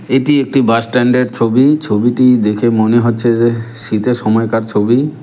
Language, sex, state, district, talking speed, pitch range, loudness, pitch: Bengali, male, West Bengal, Cooch Behar, 160 wpm, 115-125 Hz, -13 LUFS, 120 Hz